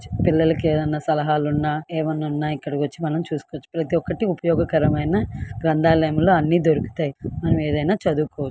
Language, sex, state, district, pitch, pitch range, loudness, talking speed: Telugu, female, Andhra Pradesh, Guntur, 155 Hz, 150-165 Hz, -21 LUFS, 125 wpm